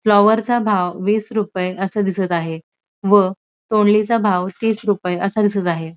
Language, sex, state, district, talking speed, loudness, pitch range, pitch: Marathi, female, Maharashtra, Dhule, 170 wpm, -18 LUFS, 180-215 Hz, 205 Hz